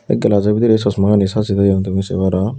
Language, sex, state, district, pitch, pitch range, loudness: Chakma, male, Tripura, Unakoti, 100 Hz, 95-105 Hz, -15 LUFS